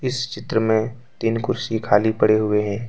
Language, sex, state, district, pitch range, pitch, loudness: Hindi, male, Jharkhand, Deoghar, 105-120 Hz, 110 Hz, -20 LUFS